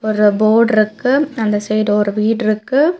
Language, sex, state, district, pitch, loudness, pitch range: Tamil, female, Tamil Nadu, Nilgiris, 215 Hz, -15 LUFS, 210-230 Hz